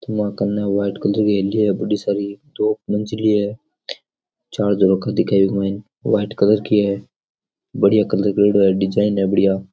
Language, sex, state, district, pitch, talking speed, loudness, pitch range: Rajasthani, male, Rajasthan, Nagaur, 100 Hz, 175 wpm, -18 LUFS, 100-105 Hz